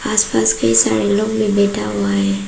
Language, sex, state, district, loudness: Hindi, female, Arunachal Pradesh, Papum Pare, -15 LUFS